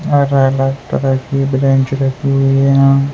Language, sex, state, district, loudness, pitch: Hindi, male, Uttar Pradesh, Hamirpur, -13 LUFS, 135 Hz